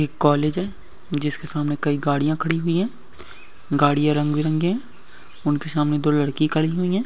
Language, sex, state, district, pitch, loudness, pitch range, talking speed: Hindi, male, Maharashtra, Chandrapur, 150 Hz, -22 LUFS, 150-165 Hz, 180 wpm